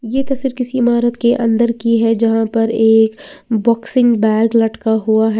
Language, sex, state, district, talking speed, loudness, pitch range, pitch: Hindi, female, Uttar Pradesh, Lalitpur, 180 wpm, -14 LUFS, 225-240 Hz, 230 Hz